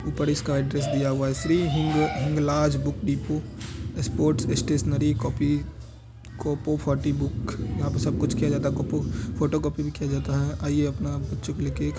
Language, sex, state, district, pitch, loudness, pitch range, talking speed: Hindi, male, Bihar, Madhepura, 140 Hz, -26 LUFS, 115-150 Hz, 195 wpm